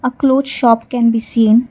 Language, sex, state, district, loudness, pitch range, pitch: English, female, Assam, Kamrup Metropolitan, -14 LUFS, 230-260 Hz, 240 Hz